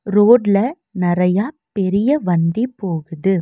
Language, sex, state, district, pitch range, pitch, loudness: Tamil, female, Tamil Nadu, Nilgiris, 180-235 Hz, 200 Hz, -17 LUFS